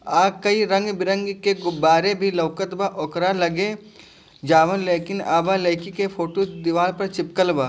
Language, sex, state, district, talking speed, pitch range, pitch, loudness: Bhojpuri, male, Bihar, Gopalganj, 155 wpm, 170-195 Hz, 190 Hz, -21 LUFS